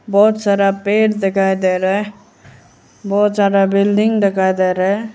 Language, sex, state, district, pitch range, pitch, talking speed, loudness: Hindi, female, Arunachal Pradesh, Lower Dibang Valley, 195-210 Hz, 200 Hz, 165 wpm, -15 LUFS